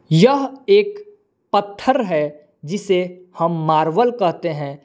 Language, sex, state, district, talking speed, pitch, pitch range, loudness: Hindi, male, Jharkhand, Palamu, 110 wpm, 180 Hz, 160-260 Hz, -18 LUFS